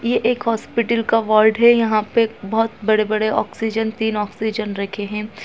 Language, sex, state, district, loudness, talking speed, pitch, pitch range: Hindi, female, Uttarakhand, Tehri Garhwal, -19 LUFS, 175 wpm, 220 Hz, 215-230 Hz